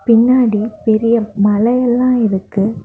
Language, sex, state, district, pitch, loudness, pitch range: Tamil, female, Tamil Nadu, Kanyakumari, 225 Hz, -13 LUFS, 210-240 Hz